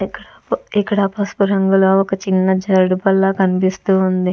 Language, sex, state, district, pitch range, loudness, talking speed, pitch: Telugu, female, Andhra Pradesh, Chittoor, 185-195 Hz, -16 LUFS, 95 wpm, 190 Hz